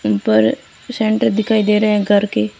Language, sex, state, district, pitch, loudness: Hindi, female, Rajasthan, Barmer, 210 Hz, -15 LUFS